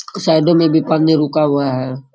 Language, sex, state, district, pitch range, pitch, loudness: Rajasthani, male, Rajasthan, Churu, 140-160 Hz, 155 Hz, -14 LUFS